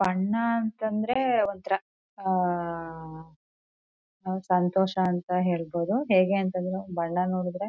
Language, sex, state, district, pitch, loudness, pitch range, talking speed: Kannada, female, Karnataka, Chamarajanagar, 185 Hz, -27 LUFS, 180-200 Hz, 85 wpm